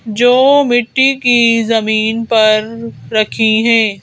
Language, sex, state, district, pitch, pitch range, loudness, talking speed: Hindi, female, Madhya Pradesh, Bhopal, 230 Hz, 220-245 Hz, -11 LUFS, 105 wpm